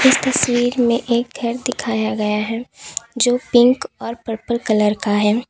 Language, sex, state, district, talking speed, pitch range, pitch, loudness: Hindi, female, Uttar Pradesh, Lalitpur, 165 wpm, 220-245 Hz, 235 Hz, -18 LUFS